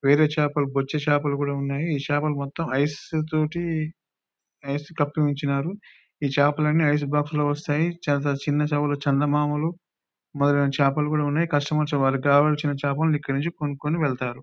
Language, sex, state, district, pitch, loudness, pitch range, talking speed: Telugu, male, Telangana, Nalgonda, 145 Hz, -24 LUFS, 140-150 Hz, 155 wpm